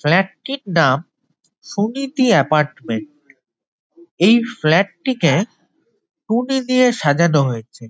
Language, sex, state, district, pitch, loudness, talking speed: Bengali, male, West Bengal, Jalpaiguri, 190 Hz, -17 LUFS, 90 wpm